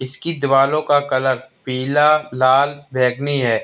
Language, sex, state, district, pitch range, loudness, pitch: Hindi, male, Uttar Pradesh, Lalitpur, 130-145 Hz, -16 LUFS, 135 Hz